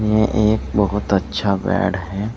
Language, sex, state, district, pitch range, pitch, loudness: Hindi, male, Uttar Pradesh, Saharanpur, 95-105 Hz, 100 Hz, -19 LUFS